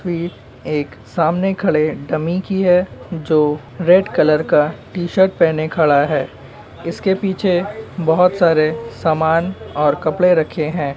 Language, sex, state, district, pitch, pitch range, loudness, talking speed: Hindi, male, Uttar Pradesh, Jalaun, 160 Hz, 150-180 Hz, -17 LUFS, 140 wpm